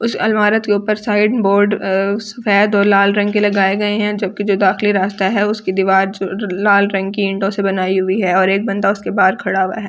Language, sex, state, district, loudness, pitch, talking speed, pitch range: Hindi, female, Delhi, New Delhi, -15 LUFS, 200 Hz, 220 wpm, 195-210 Hz